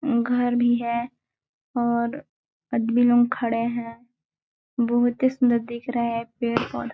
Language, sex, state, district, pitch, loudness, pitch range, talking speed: Hindi, female, Chhattisgarh, Balrampur, 240 Hz, -23 LUFS, 235-245 Hz, 140 wpm